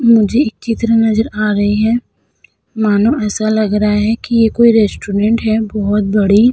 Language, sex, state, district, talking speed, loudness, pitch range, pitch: Hindi, female, Uttar Pradesh, Budaun, 175 wpm, -13 LUFS, 210-230 Hz, 220 Hz